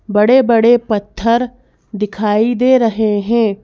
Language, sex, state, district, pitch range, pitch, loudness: Hindi, female, Madhya Pradesh, Bhopal, 210-240 Hz, 225 Hz, -13 LUFS